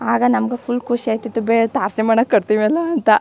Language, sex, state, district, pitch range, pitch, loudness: Kannada, female, Karnataka, Chamarajanagar, 220-245 Hz, 230 Hz, -17 LUFS